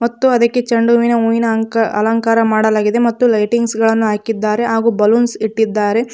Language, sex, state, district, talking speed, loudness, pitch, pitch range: Kannada, female, Karnataka, Koppal, 135 wpm, -14 LUFS, 225 Hz, 220-235 Hz